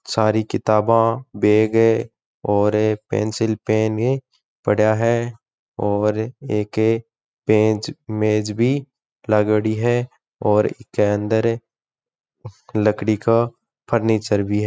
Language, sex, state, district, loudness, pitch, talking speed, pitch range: Rajasthani, male, Rajasthan, Churu, -20 LUFS, 110 Hz, 100 wpm, 105-115 Hz